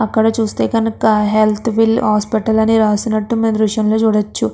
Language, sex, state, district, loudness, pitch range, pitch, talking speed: Telugu, female, Andhra Pradesh, Krishna, -15 LUFS, 215-225 Hz, 220 Hz, 145 wpm